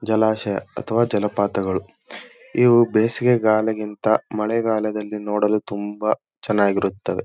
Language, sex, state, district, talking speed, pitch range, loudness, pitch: Kannada, male, Karnataka, Dharwad, 75 wpm, 105-110 Hz, -21 LUFS, 105 Hz